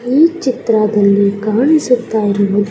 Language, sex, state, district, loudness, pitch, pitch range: Kannada, female, Karnataka, Chamarajanagar, -13 LUFS, 220 Hz, 205-255 Hz